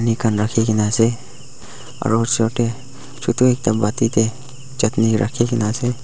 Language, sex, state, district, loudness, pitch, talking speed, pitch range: Nagamese, male, Nagaland, Dimapur, -18 LUFS, 115 Hz, 120 wpm, 110-125 Hz